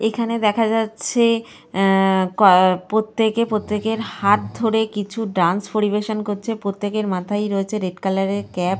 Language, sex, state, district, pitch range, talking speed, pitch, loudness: Bengali, female, Jharkhand, Sahebganj, 195-220 Hz, 145 wpm, 210 Hz, -20 LUFS